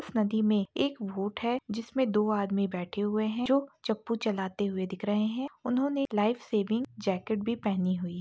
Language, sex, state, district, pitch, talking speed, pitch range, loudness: Hindi, female, Chhattisgarh, Raigarh, 215 Hz, 180 wpm, 200-235 Hz, -30 LUFS